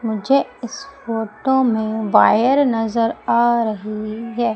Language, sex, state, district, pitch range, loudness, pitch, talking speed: Hindi, female, Madhya Pradesh, Umaria, 220-255 Hz, -18 LUFS, 230 Hz, 120 wpm